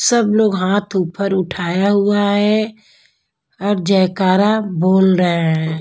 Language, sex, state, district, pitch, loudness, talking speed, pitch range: Hindi, female, Bihar, Patna, 195 Hz, -16 LUFS, 125 wpm, 185-205 Hz